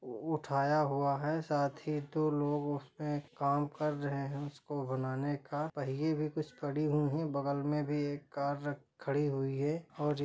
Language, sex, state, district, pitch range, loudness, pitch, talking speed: Hindi, male, Jharkhand, Sahebganj, 140-150 Hz, -35 LUFS, 145 Hz, 170 wpm